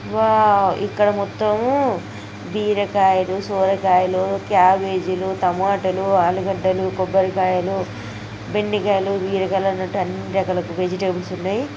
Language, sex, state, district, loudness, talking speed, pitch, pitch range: Telugu, female, Telangana, Karimnagar, -19 LUFS, 80 wpm, 190 Hz, 185-200 Hz